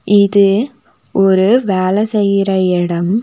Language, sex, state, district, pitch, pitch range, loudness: Tamil, female, Tamil Nadu, Nilgiris, 200 Hz, 190-205 Hz, -13 LUFS